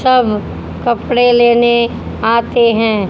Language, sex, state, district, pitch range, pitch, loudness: Hindi, female, Haryana, Rohtak, 225-240 Hz, 235 Hz, -13 LUFS